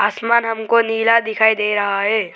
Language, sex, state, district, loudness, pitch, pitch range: Hindi, male, Arunachal Pradesh, Lower Dibang Valley, -16 LUFS, 220 Hz, 210-230 Hz